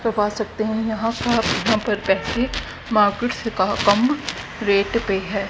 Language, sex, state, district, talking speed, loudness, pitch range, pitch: Hindi, female, Haryana, Jhajjar, 175 wpm, -21 LUFS, 205-230 Hz, 220 Hz